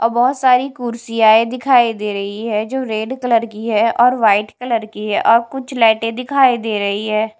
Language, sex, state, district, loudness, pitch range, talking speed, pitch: Hindi, female, Punjab, Kapurthala, -16 LUFS, 215-250 Hz, 205 wpm, 230 Hz